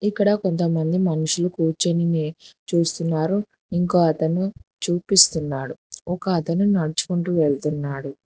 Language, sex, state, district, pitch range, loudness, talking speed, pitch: Telugu, female, Telangana, Hyderabad, 160-185 Hz, -21 LUFS, 75 wpm, 170 Hz